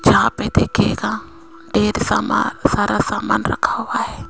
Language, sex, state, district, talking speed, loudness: Hindi, female, Rajasthan, Jaipur, 140 wpm, -18 LUFS